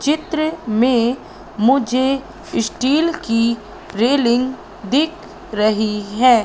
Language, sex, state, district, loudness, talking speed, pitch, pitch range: Hindi, female, Madhya Pradesh, Katni, -18 LUFS, 85 wpm, 250 Hz, 230-285 Hz